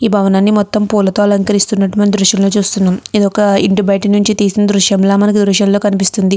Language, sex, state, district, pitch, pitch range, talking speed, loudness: Telugu, female, Andhra Pradesh, Chittoor, 205 Hz, 195-205 Hz, 170 wpm, -11 LUFS